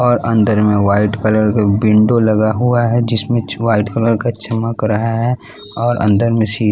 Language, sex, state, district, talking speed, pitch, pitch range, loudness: Hindi, male, Bihar, West Champaran, 190 wpm, 110 Hz, 105-115 Hz, -14 LUFS